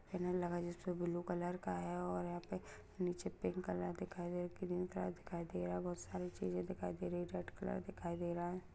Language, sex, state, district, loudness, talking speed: Hindi, female, Bihar, Madhepura, -43 LUFS, 240 wpm